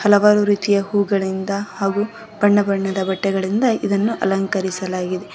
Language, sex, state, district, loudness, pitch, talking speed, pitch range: Kannada, female, Karnataka, Koppal, -19 LUFS, 200 Hz, 100 wpm, 195-205 Hz